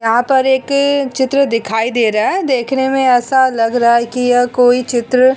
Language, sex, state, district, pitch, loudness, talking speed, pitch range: Hindi, female, Uttar Pradesh, Hamirpur, 250 Hz, -13 LUFS, 210 wpm, 235-265 Hz